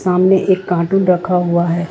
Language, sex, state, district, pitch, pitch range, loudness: Hindi, female, Jharkhand, Ranchi, 180 Hz, 175-190 Hz, -14 LUFS